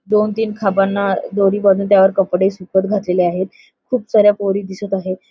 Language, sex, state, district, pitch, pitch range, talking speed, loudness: Marathi, female, Maharashtra, Solapur, 195 Hz, 190-205 Hz, 170 wpm, -16 LUFS